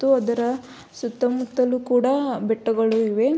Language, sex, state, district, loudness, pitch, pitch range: Kannada, female, Karnataka, Belgaum, -22 LUFS, 250 Hz, 230-255 Hz